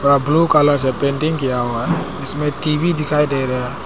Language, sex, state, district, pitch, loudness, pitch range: Hindi, male, Arunachal Pradesh, Papum Pare, 140 Hz, -17 LUFS, 130-150 Hz